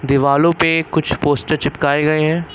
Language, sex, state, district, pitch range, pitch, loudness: Hindi, male, Uttar Pradesh, Lucknow, 140-160 Hz, 150 Hz, -16 LUFS